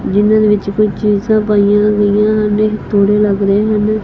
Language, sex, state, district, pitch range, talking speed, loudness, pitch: Punjabi, female, Punjab, Fazilka, 205-215 Hz, 180 wpm, -12 LUFS, 210 Hz